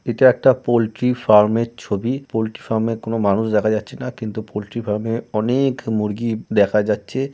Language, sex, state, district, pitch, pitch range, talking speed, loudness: Bengali, male, West Bengal, Jalpaiguri, 115 Hz, 105-120 Hz, 155 wpm, -19 LUFS